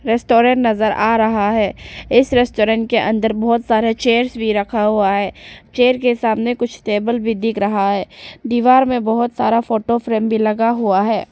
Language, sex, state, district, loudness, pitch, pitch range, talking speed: Hindi, female, Arunachal Pradesh, Papum Pare, -16 LUFS, 225 Hz, 215-240 Hz, 185 wpm